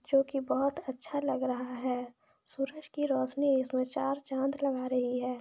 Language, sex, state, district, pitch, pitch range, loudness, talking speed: Hindi, female, Jharkhand, Jamtara, 270 Hz, 255-280 Hz, -32 LUFS, 180 wpm